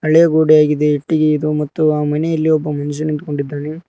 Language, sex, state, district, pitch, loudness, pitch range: Kannada, male, Karnataka, Koppal, 150 Hz, -15 LUFS, 150-155 Hz